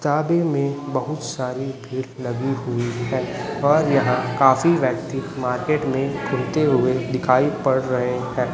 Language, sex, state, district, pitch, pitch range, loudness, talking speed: Hindi, male, Chhattisgarh, Raipur, 130 Hz, 125-145 Hz, -21 LUFS, 140 wpm